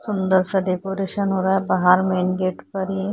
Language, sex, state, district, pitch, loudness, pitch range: Hindi, female, Chhattisgarh, Korba, 190 Hz, -21 LUFS, 185-195 Hz